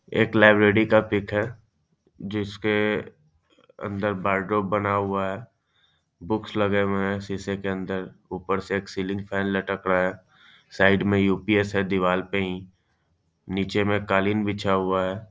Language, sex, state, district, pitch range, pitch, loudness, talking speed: Hindi, male, Bihar, East Champaran, 95-105 Hz, 100 Hz, -24 LUFS, 150 wpm